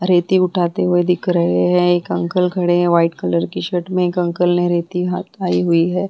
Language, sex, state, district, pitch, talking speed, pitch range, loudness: Hindi, female, Bihar, Vaishali, 175 Hz, 225 wpm, 170-180 Hz, -17 LUFS